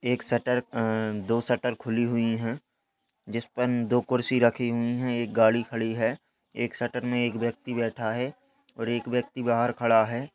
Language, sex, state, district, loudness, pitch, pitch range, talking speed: Hindi, male, Bihar, Lakhisarai, -27 LUFS, 120 Hz, 115-125 Hz, 180 wpm